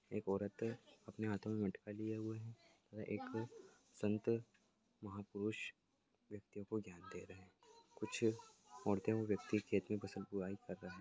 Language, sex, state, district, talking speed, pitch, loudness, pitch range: Marathi, male, Maharashtra, Sindhudurg, 160 wpm, 105 Hz, -44 LUFS, 100-110 Hz